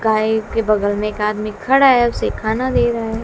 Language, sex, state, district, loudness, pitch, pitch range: Hindi, female, Bihar, West Champaran, -17 LUFS, 220 Hz, 210-235 Hz